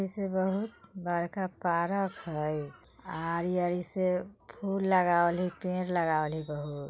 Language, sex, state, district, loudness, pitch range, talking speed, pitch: Bajjika, female, Bihar, Vaishali, -31 LUFS, 165-190 Hz, 105 wpm, 180 Hz